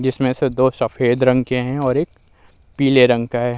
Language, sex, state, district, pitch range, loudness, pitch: Hindi, male, Bihar, Vaishali, 120-130 Hz, -17 LUFS, 125 Hz